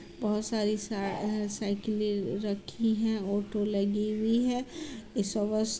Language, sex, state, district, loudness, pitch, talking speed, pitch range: Hindi, female, Bihar, Muzaffarpur, -31 LUFS, 210 Hz, 105 wpm, 205-220 Hz